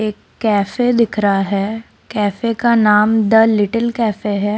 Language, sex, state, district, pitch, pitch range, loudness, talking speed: Hindi, female, Odisha, Sambalpur, 215 Hz, 205-230 Hz, -15 LUFS, 155 wpm